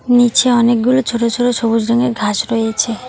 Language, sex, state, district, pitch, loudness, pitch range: Bengali, female, West Bengal, Alipurduar, 235 Hz, -14 LUFS, 230-245 Hz